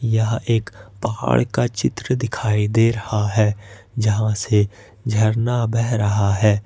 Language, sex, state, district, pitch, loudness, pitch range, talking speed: Hindi, male, Jharkhand, Ranchi, 110 Hz, -20 LUFS, 105-115 Hz, 135 wpm